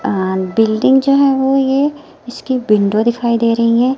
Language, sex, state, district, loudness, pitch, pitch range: Hindi, female, Himachal Pradesh, Shimla, -14 LUFS, 245 Hz, 220-270 Hz